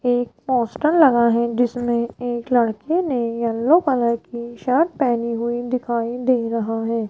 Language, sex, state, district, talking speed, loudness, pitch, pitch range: Hindi, female, Rajasthan, Jaipur, 150 wpm, -20 LUFS, 240 Hz, 235-255 Hz